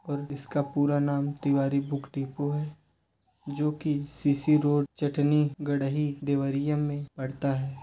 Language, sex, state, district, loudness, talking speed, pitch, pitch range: Hindi, male, Uttar Pradesh, Deoria, -28 LUFS, 140 wpm, 145 Hz, 140-145 Hz